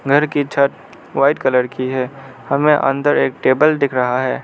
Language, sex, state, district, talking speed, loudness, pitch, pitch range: Hindi, male, Arunachal Pradesh, Lower Dibang Valley, 190 wpm, -16 LUFS, 135 Hz, 130-145 Hz